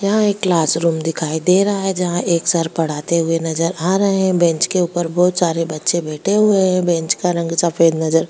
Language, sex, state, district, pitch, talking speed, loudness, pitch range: Hindi, female, Bihar, Kishanganj, 170 Hz, 230 wpm, -17 LUFS, 165-185 Hz